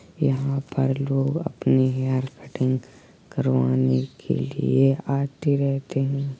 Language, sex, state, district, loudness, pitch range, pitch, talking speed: Hindi, female, Uttar Pradesh, Jalaun, -23 LUFS, 130-140 Hz, 135 Hz, 115 wpm